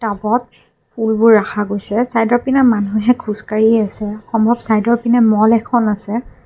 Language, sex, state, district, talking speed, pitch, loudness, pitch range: Assamese, female, Assam, Kamrup Metropolitan, 120 wpm, 225 Hz, -15 LUFS, 215-235 Hz